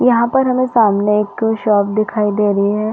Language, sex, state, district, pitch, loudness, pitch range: Hindi, female, Chhattisgarh, Rajnandgaon, 215 Hz, -15 LUFS, 210-235 Hz